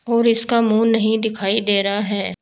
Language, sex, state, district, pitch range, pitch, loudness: Hindi, female, Uttar Pradesh, Saharanpur, 205-230 Hz, 220 Hz, -17 LUFS